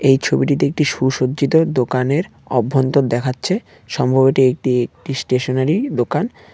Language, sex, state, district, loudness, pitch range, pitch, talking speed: Bengali, male, West Bengal, Cooch Behar, -17 LUFS, 130-145 Hz, 130 Hz, 110 wpm